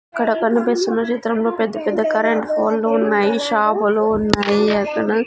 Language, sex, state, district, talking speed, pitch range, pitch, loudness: Telugu, female, Andhra Pradesh, Sri Satya Sai, 125 wpm, 210-230 Hz, 220 Hz, -18 LUFS